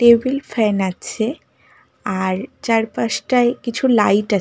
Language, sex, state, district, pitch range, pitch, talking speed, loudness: Bengali, female, West Bengal, Malda, 205-245 Hz, 225 Hz, 110 wpm, -18 LUFS